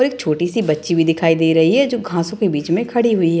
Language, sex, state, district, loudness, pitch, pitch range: Hindi, female, Bihar, Madhepura, -17 LUFS, 170 Hz, 165-225 Hz